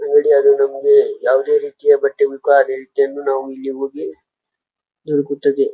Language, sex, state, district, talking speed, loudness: Kannada, male, Karnataka, Dharwad, 125 wpm, -16 LUFS